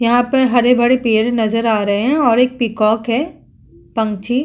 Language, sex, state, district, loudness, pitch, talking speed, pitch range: Hindi, female, Uttar Pradesh, Muzaffarnagar, -15 LUFS, 235 Hz, 175 wpm, 220-250 Hz